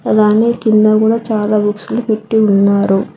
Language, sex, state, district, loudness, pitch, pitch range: Telugu, female, Telangana, Hyderabad, -12 LUFS, 215 Hz, 205-220 Hz